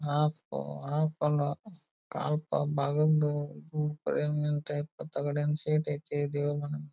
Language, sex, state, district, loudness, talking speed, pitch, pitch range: Kannada, male, Karnataka, Belgaum, -31 LUFS, 95 wpm, 150 Hz, 145-150 Hz